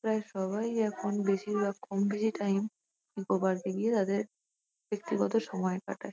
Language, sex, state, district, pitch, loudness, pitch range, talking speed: Bengali, female, West Bengal, North 24 Parganas, 205 Hz, -32 LUFS, 195-220 Hz, 125 wpm